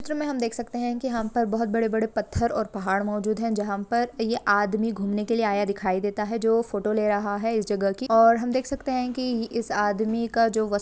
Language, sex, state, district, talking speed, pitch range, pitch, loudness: Hindi, female, Jharkhand, Jamtara, 245 wpm, 205-235 Hz, 225 Hz, -25 LUFS